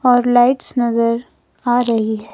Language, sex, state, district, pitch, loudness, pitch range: Hindi, female, Himachal Pradesh, Shimla, 245 Hz, -16 LUFS, 230-245 Hz